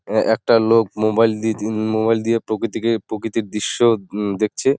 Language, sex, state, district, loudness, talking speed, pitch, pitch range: Bengali, male, West Bengal, Jalpaiguri, -19 LUFS, 140 wpm, 110 Hz, 110-115 Hz